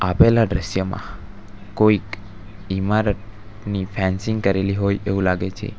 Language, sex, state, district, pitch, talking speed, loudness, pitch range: Gujarati, male, Gujarat, Valsad, 100 Hz, 105 wpm, -21 LUFS, 95-105 Hz